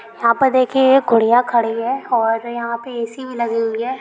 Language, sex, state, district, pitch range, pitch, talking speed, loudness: Hindi, female, Rajasthan, Nagaur, 230-255 Hz, 235 Hz, 210 wpm, -17 LUFS